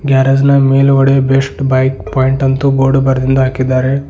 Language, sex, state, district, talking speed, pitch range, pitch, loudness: Kannada, male, Karnataka, Bidar, 145 wpm, 130-135 Hz, 135 Hz, -11 LUFS